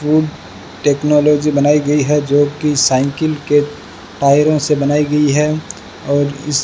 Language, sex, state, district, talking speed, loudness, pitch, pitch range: Hindi, male, Rajasthan, Bikaner, 155 wpm, -14 LUFS, 150 Hz, 145-150 Hz